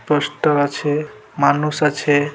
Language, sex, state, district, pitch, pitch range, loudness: Bengali, male, West Bengal, Malda, 150 Hz, 145-150 Hz, -18 LUFS